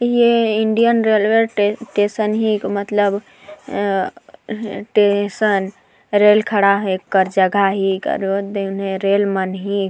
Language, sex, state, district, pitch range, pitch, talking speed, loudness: Sadri, female, Chhattisgarh, Jashpur, 195-215 Hz, 205 Hz, 120 wpm, -17 LUFS